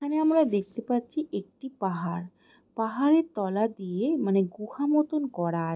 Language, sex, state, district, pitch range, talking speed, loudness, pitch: Bengali, female, West Bengal, Jhargram, 195-295 Hz, 145 wpm, -28 LUFS, 225 Hz